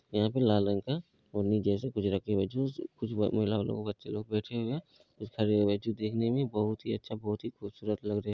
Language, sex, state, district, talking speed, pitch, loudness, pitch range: Hindi, male, Bihar, East Champaran, 265 wpm, 105 Hz, -32 LUFS, 105-115 Hz